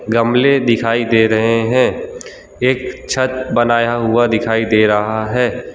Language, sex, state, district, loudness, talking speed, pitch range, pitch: Hindi, male, Gujarat, Valsad, -15 LUFS, 135 wpm, 115-130 Hz, 120 Hz